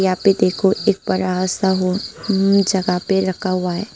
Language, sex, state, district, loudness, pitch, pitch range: Hindi, female, Tripura, Unakoti, -18 LUFS, 190 Hz, 185-195 Hz